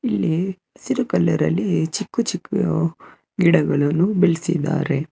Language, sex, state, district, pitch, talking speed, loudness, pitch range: Kannada, male, Karnataka, Bangalore, 170 Hz, 95 wpm, -20 LUFS, 160-190 Hz